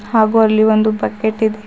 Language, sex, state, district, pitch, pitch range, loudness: Kannada, female, Karnataka, Bidar, 220 Hz, 215-220 Hz, -14 LUFS